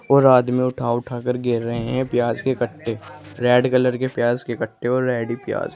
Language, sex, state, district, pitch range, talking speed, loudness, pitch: Hindi, male, Uttar Pradesh, Saharanpur, 120-125 Hz, 220 wpm, -20 LUFS, 125 Hz